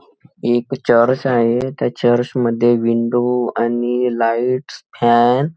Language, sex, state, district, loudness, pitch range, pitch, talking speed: Marathi, male, Maharashtra, Nagpur, -16 LUFS, 120-130 Hz, 120 Hz, 110 wpm